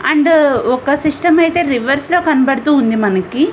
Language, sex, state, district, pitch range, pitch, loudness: Telugu, female, Andhra Pradesh, Visakhapatnam, 260-325 Hz, 290 Hz, -13 LUFS